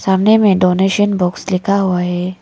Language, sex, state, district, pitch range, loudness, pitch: Hindi, female, Arunachal Pradesh, Lower Dibang Valley, 180-200 Hz, -14 LUFS, 190 Hz